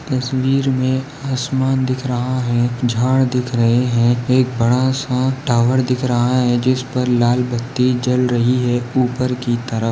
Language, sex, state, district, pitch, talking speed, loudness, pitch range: Hindi, male, Maharashtra, Nagpur, 125 Hz, 170 wpm, -17 LUFS, 120-130 Hz